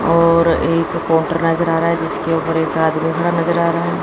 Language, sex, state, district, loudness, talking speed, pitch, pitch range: Hindi, female, Chandigarh, Chandigarh, -16 LUFS, 180 wpm, 165 Hz, 165-170 Hz